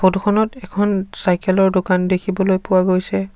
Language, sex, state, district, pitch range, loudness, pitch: Assamese, male, Assam, Sonitpur, 185-195 Hz, -18 LUFS, 190 Hz